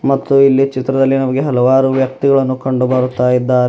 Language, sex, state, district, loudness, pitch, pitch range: Kannada, male, Karnataka, Bidar, -13 LUFS, 130 Hz, 130-135 Hz